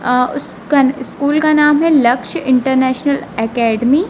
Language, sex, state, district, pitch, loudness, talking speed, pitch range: Hindi, male, Madhya Pradesh, Dhar, 265 Hz, -14 LUFS, 160 wpm, 250-295 Hz